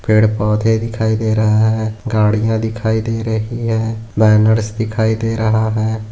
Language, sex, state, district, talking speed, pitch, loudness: Hindi, male, Maharashtra, Aurangabad, 155 wpm, 110 Hz, -16 LUFS